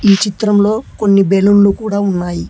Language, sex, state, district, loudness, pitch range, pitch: Telugu, male, Telangana, Hyderabad, -13 LUFS, 195-205 Hz, 200 Hz